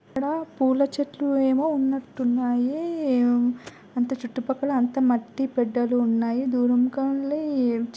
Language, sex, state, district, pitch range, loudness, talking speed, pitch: Telugu, female, Telangana, Nalgonda, 245-275 Hz, -24 LUFS, 115 wpm, 260 Hz